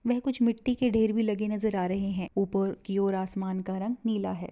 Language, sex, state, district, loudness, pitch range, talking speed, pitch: Hindi, female, Maharashtra, Nagpur, -29 LUFS, 195-230 Hz, 250 wpm, 205 Hz